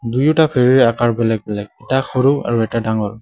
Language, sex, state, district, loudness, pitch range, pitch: Assamese, male, Assam, Sonitpur, -16 LUFS, 110-130 Hz, 120 Hz